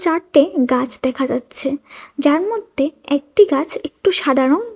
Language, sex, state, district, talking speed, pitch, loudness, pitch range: Bengali, female, Tripura, West Tripura, 140 wpm, 285 Hz, -16 LUFS, 270-340 Hz